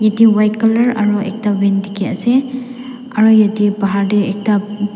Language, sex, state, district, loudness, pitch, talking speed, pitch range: Nagamese, female, Nagaland, Dimapur, -14 LUFS, 210 Hz, 155 wpm, 205-225 Hz